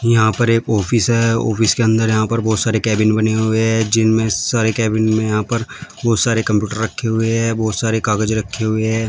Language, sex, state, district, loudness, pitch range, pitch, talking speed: Hindi, male, Uttar Pradesh, Shamli, -16 LUFS, 110-115 Hz, 110 Hz, 225 wpm